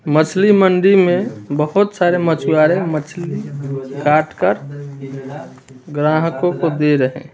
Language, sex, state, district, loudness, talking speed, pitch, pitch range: Hindi, male, Bihar, Muzaffarpur, -16 LUFS, 115 wpm, 155 Hz, 145-175 Hz